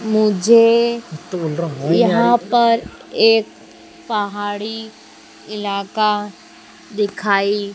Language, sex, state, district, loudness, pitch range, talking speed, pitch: Hindi, female, Madhya Pradesh, Dhar, -17 LUFS, 200-230 Hz, 55 wpm, 210 Hz